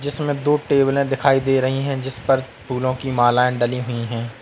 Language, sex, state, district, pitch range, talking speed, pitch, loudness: Hindi, male, Uttar Pradesh, Lalitpur, 125-140 Hz, 190 wpm, 130 Hz, -20 LUFS